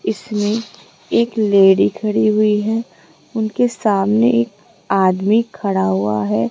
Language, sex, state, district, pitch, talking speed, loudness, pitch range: Hindi, female, Rajasthan, Jaipur, 210 Hz, 120 wpm, -16 LUFS, 190-225 Hz